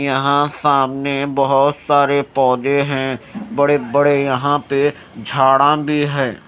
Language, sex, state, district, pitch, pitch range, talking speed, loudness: Hindi, male, Haryana, Rohtak, 140 Hz, 135-145 Hz, 120 wpm, -16 LUFS